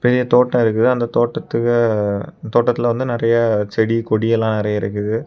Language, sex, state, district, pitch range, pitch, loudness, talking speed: Tamil, male, Tamil Nadu, Kanyakumari, 110-120 Hz, 115 Hz, -17 LUFS, 150 wpm